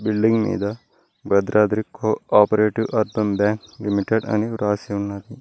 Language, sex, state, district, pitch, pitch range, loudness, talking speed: Telugu, male, Telangana, Mahabubabad, 105 Hz, 105-110 Hz, -21 LUFS, 120 wpm